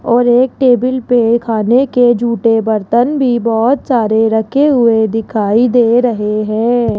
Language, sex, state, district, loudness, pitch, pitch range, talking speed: Hindi, female, Rajasthan, Jaipur, -12 LUFS, 235 Hz, 225-245 Hz, 145 wpm